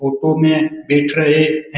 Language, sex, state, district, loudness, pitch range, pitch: Hindi, male, Bihar, Lakhisarai, -15 LUFS, 145-155 Hz, 155 Hz